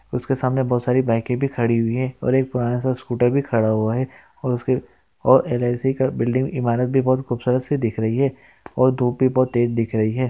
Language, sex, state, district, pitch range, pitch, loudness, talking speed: Hindi, male, Uttarakhand, Uttarkashi, 120-130 Hz, 125 Hz, -21 LUFS, 235 wpm